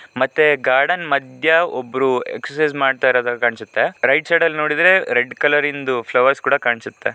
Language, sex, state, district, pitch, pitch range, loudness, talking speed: Kannada, male, Karnataka, Shimoga, 135 Hz, 125-150 Hz, -17 LUFS, 140 wpm